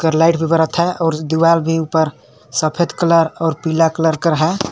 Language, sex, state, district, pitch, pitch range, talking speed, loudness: Sadri, male, Chhattisgarh, Jashpur, 160 Hz, 160-165 Hz, 180 wpm, -16 LUFS